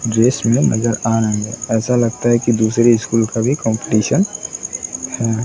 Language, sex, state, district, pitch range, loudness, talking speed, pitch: Hindi, male, Bihar, Saran, 110-120 Hz, -16 LUFS, 175 wpm, 115 Hz